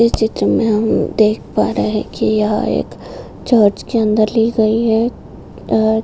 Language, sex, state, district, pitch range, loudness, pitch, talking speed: Hindi, female, Bihar, Saran, 215-225 Hz, -15 LUFS, 220 Hz, 190 wpm